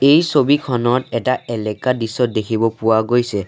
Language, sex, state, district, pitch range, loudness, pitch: Assamese, male, Assam, Sonitpur, 110-130 Hz, -17 LUFS, 120 Hz